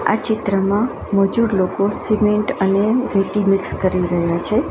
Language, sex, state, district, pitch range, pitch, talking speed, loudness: Gujarati, female, Gujarat, Valsad, 195-215 Hz, 200 Hz, 140 wpm, -18 LUFS